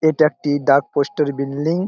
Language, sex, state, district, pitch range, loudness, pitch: Bengali, male, West Bengal, Jalpaiguri, 140-155 Hz, -18 LUFS, 145 Hz